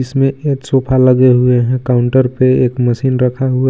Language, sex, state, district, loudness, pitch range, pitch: Hindi, female, Jharkhand, Garhwa, -12 LUFS, 125-130 Hz, 130 Hz